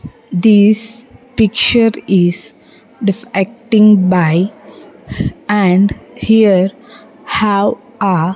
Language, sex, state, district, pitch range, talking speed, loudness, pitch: English, female, Andhra Pradesh, Sri Satya Sai, 195-230 Hz, 70 wpm, -13 LUFS, 210 Hz